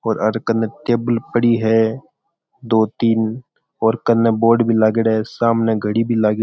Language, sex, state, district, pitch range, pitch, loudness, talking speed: Rajasthani, male, Rajasthan, Churu, 110-115 Hz, 115 Hz, -17 LUFS, 185 wpm